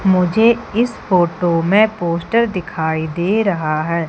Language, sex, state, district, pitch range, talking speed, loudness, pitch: Hindi, female, Madhya Pradesh, Umaria, 170-215 Hz, 130 wpm, -16 LUFS, 180 Hz